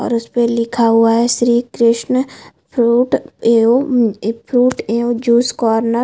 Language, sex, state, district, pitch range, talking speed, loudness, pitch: Hindi, female, Chhattisgarh, Bilaspur, 230-245 Hz, 150 wpm, -15 LUFS, 235 Hz